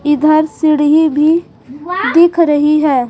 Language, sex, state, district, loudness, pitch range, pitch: Hindi, female, Chhattisgarh, Raipur, -11 LUFS, 295-325 Hz, 310 Hz